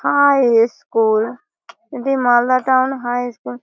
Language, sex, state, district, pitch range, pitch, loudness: Bengali, female, West Bengal, Malda, 230-265 Hz, 245 Hz, -16 LUFS